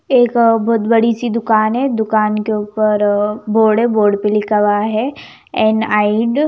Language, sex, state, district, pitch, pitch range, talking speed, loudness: Hindi, female, Punjab, Kapurthala, 220 Hz, 210-230 Hz, 175 wpm, -14 LUFS